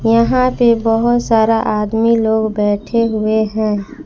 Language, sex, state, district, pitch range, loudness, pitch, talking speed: Hindi, female, Jharkhand, Palamu, 215-230 Hz, -14 LUFS, 225 Hz, 135 wpm